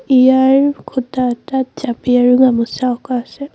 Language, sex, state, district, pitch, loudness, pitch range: Assamese, female, Assam, Sonitpur, 255 Hz, -14 LUFS, 245-265 Hz